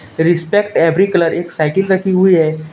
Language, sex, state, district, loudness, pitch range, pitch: Hindi, male, Jharkhand, Deoghar, -14 LUFS, 165-190 Hz, 175 Hz